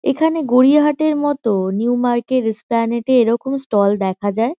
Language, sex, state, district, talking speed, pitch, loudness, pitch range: Bengali, female, West Bengal, Kolkata, 145 wpm, 245 Hz, -16 LUFS, 220-280 Hz